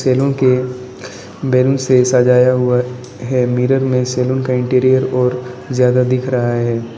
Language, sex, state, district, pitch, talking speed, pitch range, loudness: Hindi, male, Arunachal Pradesh, Lower Dibang Valley, 125 Hz, 140 wpm, 125-130 Hz, -14 LUFS